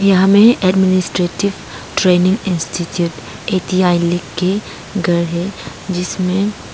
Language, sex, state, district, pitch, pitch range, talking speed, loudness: Hindi, female, Arunachal Pradesh, Papum Pare, 185 Hz, 175-195 Hz, 105 wpm, -15 LUFS